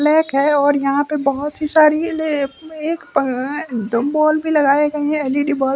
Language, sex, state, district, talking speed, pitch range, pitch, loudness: Hindi, male, Bihar, West Champaran, 165 wpm, 275-305 Hz, 295 Hz, -17 LUFS